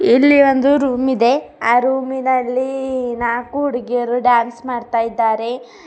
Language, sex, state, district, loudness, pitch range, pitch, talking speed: Kannada, female, Karnataka, Bidar, -16 LUFS, 240-265 Hz, 250 Hz, 125 wpm